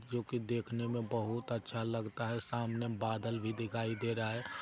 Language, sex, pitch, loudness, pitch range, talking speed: Maithili, male, 115 Hz, -38 LUFS, 115-120 Hz, 195 wpm